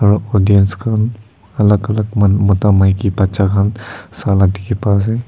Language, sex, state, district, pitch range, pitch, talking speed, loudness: Nagamese, male, Nagaland, Kohima, 100-105 Hz, 100 Hz, 145 wpm, -14 LUFS